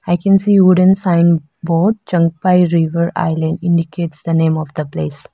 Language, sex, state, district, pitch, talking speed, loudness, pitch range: English, female, Arunachal Pradesh, Lower Dibang Valley, 170 Hz, 170 wpm, -14 LUFS, 160-180 Hz